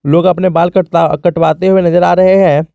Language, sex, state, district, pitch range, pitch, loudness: Hindi, male, Jharkhand, Garhwa, 165-185 Hz, 175 Hz, -10 LUFS